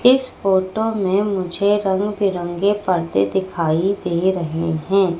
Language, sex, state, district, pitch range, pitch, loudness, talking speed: Hindi, female, Madhya Pradesh, Katni, 175-200 Hz, 190 Hz, -19 LUFS, 125 wpm